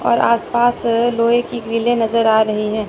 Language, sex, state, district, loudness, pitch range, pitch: Hindi, female, Chandigarh, Chandigarh, -16 LUFS, 220-235 Hz, 230 Hz